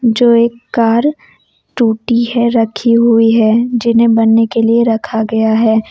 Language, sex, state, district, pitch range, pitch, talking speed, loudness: Hindi, female, Jharkhand, Deoghar, 225-235 Hz, 230 Hz, 150 wpm, -12 LUFS